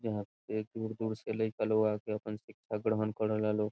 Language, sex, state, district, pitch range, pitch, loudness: Bhojpuri, male, Bihar, Saran, 105-110 Hz, 110 Hz, -35 LUFS